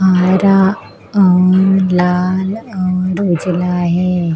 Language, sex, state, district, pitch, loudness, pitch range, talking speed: Hindi, female, Bihar, Katihar, 185 Hz, -13 LUFS, 180-190 Hz, 80 wpm